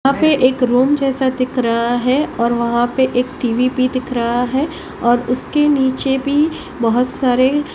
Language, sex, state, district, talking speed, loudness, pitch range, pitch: Hindi, female, Maharashtra, Mumbai Suburban, 180 wpm, -16 LUFS, 245-275 Hz, 255 Hz